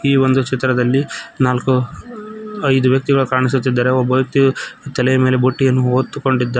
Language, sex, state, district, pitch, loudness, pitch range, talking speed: Kannada, male, Karnataka, Koppal, 130 Hz, -16 LUFS, 130-135 Hz, 135 wpm